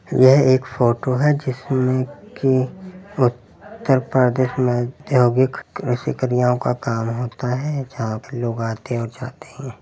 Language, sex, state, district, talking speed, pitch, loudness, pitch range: Hindi, male, Uttar Pradesh, Hamirpur, 145 wpm, 130 Hz, -20 LUFS, 120-130 Hz